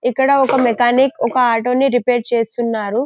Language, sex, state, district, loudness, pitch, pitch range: Telugu, female, Telangana, Karimnagar, -15 LUFS, 245 Hz, 235-265 Hz